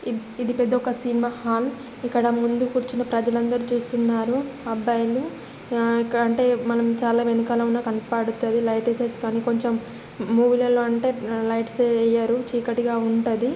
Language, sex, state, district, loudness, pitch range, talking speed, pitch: Telugu, female, Telangana, Nalgonda, -23 LUFS, 230-245 Hz, 135 wpm, 235 Hz